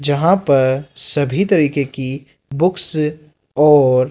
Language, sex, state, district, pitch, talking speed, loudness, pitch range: Hindi, male, Rajasthan, Jaipur, 145 Hz, 100 wpm, -16 LUFS, 135-155 Hz